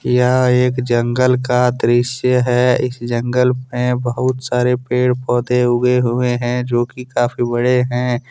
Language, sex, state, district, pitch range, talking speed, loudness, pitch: Hindi, male, Jharkhand, Deoghar, 120-125 Hz, 145 wpm, -16 LUFS, 125 Hz